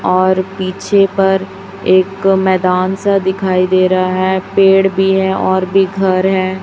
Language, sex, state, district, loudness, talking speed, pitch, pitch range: Hindi, female, Chhattisgarh, Raipur, -13 LUFS, 155 wpm, 190 Hz, 185-195 Hz